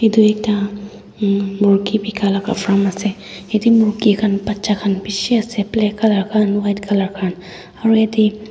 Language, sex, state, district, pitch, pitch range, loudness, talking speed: Nagamese, female, Nagaland, Dimapur, 205 Hz, 200-215 Hz, -17 LUFS, 155 wpm